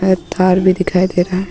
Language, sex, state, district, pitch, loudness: Hindi, female, Jharkhand, Ranchi, 185 Hz, -14 LUFS